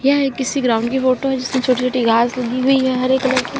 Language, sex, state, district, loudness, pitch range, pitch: Hindi, female, Uttar Pradesh, Lalitpur, -17 LUFS, 250-265 Hz, 255 Hz